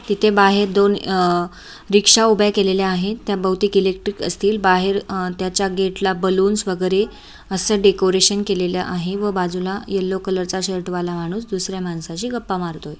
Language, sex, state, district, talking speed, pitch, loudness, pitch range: Marathi, female, Maharashtra, Aurangabad, 150 wpm, 190 Hz, -18 LUFS, 185-205 Hz